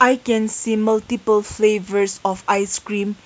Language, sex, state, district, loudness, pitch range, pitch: English, female, Nagaland, Kohima, -19 LUFS, 200-220 Hz, 215 Hz